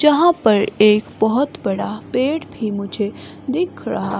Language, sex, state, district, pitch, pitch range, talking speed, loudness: Hindi, female, Himachal Pradesh, Shimla, 235 Hz, 210-300 Hz, 155 wpm, -18 LUFS